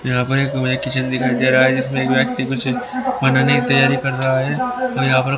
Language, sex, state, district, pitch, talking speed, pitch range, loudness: Hindi, male, Haryana, Rohtak, 130 Hz, 235 wpm, 130-135 Hz, -17 LUFS